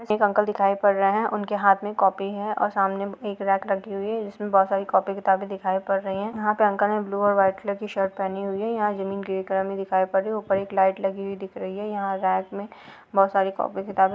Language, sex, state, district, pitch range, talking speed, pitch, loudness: Hindi, female, Chhattisgarh, Korba, 195-205 Hz, 270 wpm, 195 Hz, -24 LUFS